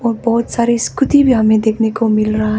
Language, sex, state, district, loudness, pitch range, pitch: Hindi, female, Arunachal Pradesh, Papum Pare, -14 LUFS, 220-235 Hz, 225 Hz